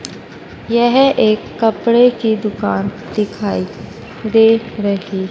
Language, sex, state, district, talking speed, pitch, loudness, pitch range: Hindi, female, Madhya Pradesh, Dhar, 90 wpm, 220 Hz, -15 LUFS, 200-235 Hz